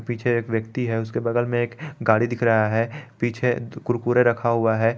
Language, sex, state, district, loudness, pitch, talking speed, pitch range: Hindi, male, Jharkhand, Garhwa, -22 LUFS, 120 Hz, 205 wpm, 115-120 Hz